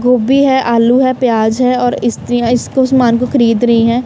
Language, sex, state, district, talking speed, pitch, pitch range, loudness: Hindi, female, Punjab, Kapurthala, 205 wpm, 245 Hz, 235-255 Hz, -12 LUFS